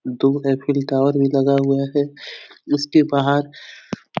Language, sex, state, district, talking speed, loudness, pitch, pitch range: Hindi, male, Uttar Pradesh, Etah, 145 wpm, -19 LUFS, 140 Hz, 135-145 Hz